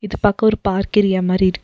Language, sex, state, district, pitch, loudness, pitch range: Tamil, female, Tamil Nadu, Nilgiris, 195 Hz, -17 LUFS, 190-210 Hz